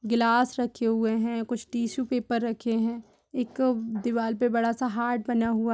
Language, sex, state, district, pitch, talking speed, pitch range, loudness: Hindi, female, Bihar, Purnia, 235 Hz, 165 wpm, 230-245 Hz, -27 LUFS